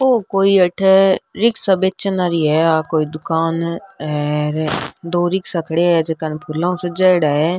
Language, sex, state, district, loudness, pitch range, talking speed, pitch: Rajasthani, female, Rajasthan, Nagaur, -17 LUFS, 155-190 Hz, 165 wpm, 170 Hz